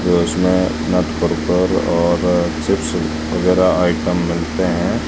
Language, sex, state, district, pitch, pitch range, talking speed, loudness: Hindi, male, Rajasthan, Jaisalmer, 85 Hz, 80-90 Hz, 105 wpm, -17 LUFS